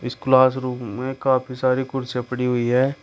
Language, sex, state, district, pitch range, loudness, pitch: Hindi, male, Uttar Pradesh, Shamli, 125-130 Hz, -21 LUFS, 130 Hz